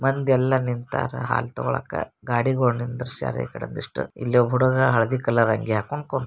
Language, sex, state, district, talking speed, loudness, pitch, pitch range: Kannada, male, Karnataka, Bijapur, 165 wpm, -23 LUFS, 125 Hz, 115-130 Hz